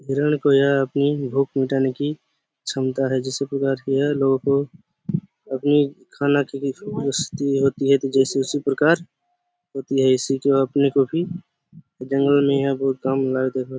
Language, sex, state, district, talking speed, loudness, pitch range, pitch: Hindi, male, Chhattisgarh, Bastar, 140 wpm, -21 LUFS, 135-145 Hz, 140 Hz